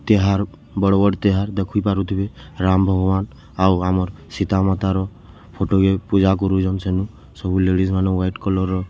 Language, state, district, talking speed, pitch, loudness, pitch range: Sambalpuri, Odisha, Sambalpur, 160 wpm, 95 Hz, -19 LUFS, 95-100 Hz